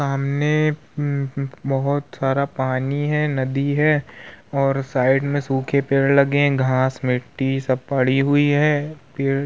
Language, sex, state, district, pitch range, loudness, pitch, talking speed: Hindi, male, Uttar Pradesh, Hamirpur, 135-145 Hz, -20 LUFS, 140 Hz, 145 wpm